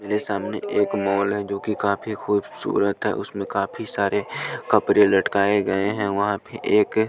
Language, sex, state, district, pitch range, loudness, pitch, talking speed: Hindi, male, Punjab, Pathankot, 100-105 Hz, -22 LUFS, 100 Hz, 160 wpm